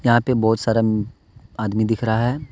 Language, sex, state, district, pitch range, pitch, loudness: Hindi, male, Jharkhand, Deoghar, 110-120 Hz, 115 Hz, -20 LUFS